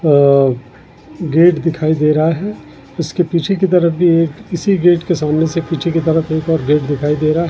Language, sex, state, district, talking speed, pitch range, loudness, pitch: Hindi, male, Uttarakhand, Tehri Garhwal, 215 wpm, 150-175 Hz, -14 LUFS, 165 Hz